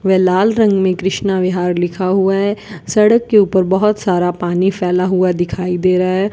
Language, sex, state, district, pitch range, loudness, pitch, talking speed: Hindi, female, Rajasthan, Bikaner, 180-200 Hz, -14 LUFS, 185 Hz, 200 wpm